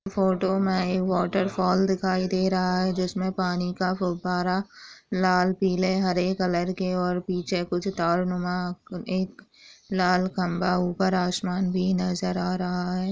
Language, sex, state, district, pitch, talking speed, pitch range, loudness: Hindi, female, Maharashtra, Aurangabad, 185 Hz, 145 wpm, 180-190 Hz, -25 LUFS